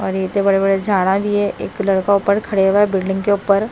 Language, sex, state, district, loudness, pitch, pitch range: Hindi, female, Himachal Pradesh, Shimla, -17 LUFS, 200 Hz, 195-205 Hz